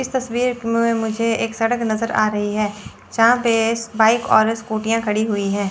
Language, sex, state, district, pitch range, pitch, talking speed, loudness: Hindi, female, Chandigarh, Chandigarh, 215-230 Hz, 225 Hz, 190 wpm, -19 LUFS